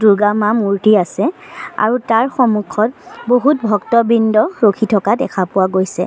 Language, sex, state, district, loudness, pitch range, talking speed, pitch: Assamese, male, Assam, Sonitpur, -14 LUFS, 205-235 Hz, 140 wpm, 215 Hz